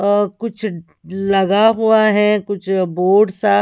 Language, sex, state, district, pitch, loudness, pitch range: Hindi, female, Punjab, Pathankot, 205 Hz, -15 LUFS, 195-215 Hz